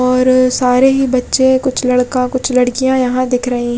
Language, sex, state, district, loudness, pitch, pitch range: Hindi, female, Odisha, Khordha, -13 LUFS, 255 Hz, 250-260 Hz